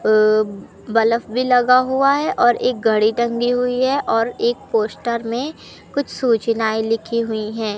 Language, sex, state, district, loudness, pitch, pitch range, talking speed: Hindi, male, Madhya Pradesh, Katni, -18 LUFS, 230 Hz, 220-250 Hz, 160 wpm